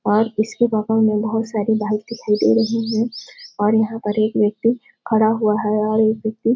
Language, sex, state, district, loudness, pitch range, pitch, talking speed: Hindi, female, Chhattisgarh, Sarguja, -19 LUFS, 215-225 Hz, 220 Hz, 130 wpm